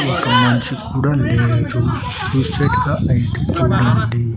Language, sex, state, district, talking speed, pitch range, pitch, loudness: Telugu, male, Andhra Pradesh, Annamaya, 95 wpm, 120-135 Hz, 125 Hz, -17 LUFS